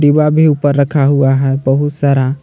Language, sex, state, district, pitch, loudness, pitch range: Hindi, male, Jharkhand, Palamu, 140 Hz, -12 LUFS, 135-145 Hz